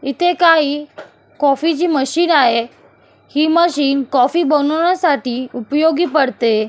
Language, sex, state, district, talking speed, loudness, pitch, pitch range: Marathi, female, Maharashtra, Solapur, 90 wpm, -15 LUFS, 295 Hz, 265-330 Hz